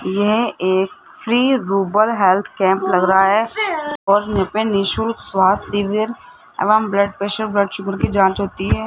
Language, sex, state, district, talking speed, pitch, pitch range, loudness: Hindi, male, Rajasthan, Jaipur, 150 wpm, 200 Hz, 195-220 Hz, -17 LUFS